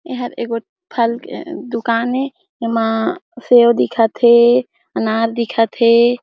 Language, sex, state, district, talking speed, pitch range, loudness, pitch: Chhattisgarhi, female, Chhattisgarh, Jashpur, 125 wpm, 230-250 Hz, -16 LUFS, 235 Hz